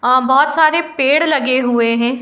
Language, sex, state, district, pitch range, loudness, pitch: Hindi, female, Uttar Pradesh, Muzaffarnagar, 250-305 Hz, -13 LUFS, 265 Hz